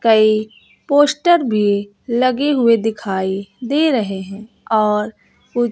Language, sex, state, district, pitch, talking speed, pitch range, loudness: Hindi, female, Bihar, West Champaran, 225 Hz, 115 wpm, 210-255 Hz, -17 LUFS